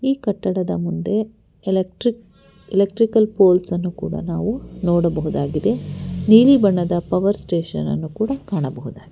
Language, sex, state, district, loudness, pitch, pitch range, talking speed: Kannada, female, Karnataka, Bangalore, -19 LUFS, 185 Hz, 170-215 Hz, 105 wpm